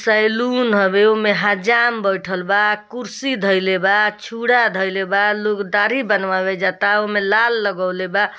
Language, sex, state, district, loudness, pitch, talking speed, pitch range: Bhojpuri, female, Bihar, East Champaran, -17 LUFS, 205 Hz, 135 wpm, 195-220 Hz